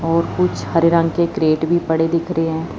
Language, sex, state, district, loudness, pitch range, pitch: Hindi, female, Chandigarh, Chandigarh, -17 LUFS, 160-170 Hz, 165 Hz